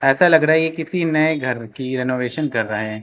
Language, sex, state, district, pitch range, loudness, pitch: Hindi, male, Uttar Pradesh, Lucknow, 125-160 Hz, -19 LUFS, 135 Hz